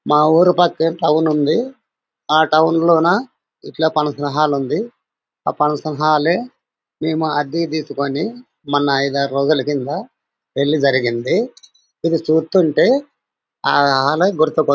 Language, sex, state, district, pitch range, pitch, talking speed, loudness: Telugu, male, Andhra Pradesh, Anantapur, 145-170 Hz, 155 Hz, 125 wpm, -17 LUFS